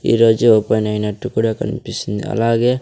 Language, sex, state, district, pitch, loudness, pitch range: Telugu, male, Andhra Pradesh, Sri Satya Sai, 115 Hz, -17 LUFS, 105-115 Hz